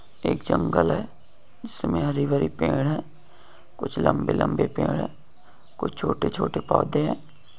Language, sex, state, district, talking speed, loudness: Hindi, male, Jharkhand, Jamtara, 125 wpm, -25 LUFS